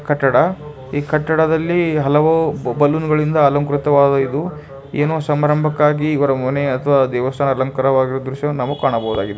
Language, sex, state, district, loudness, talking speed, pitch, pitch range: Kannada, male, Karnataka, Bijapur, -16 LUFS, 95 wpm, 145 Hz, 135-150 Hz